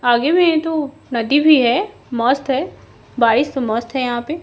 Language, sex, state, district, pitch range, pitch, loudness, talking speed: Hindi, female, Bihar, Kaimur, 240-315 Hz, 265 Hz, -17 LUFS, 190 wpm